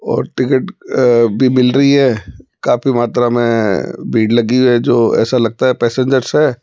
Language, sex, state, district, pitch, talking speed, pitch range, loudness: Hindi, male, Rajasthan, Jaipur, 125 Hz, 170 wpm, 120-130 Hz, -13 LUFS